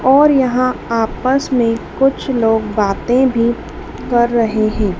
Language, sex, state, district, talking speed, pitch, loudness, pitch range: Hindi, female, Madhya Pradesh, Dhar, 130 wpm, 240 Hz, -15 LUFS, 225-260 Hz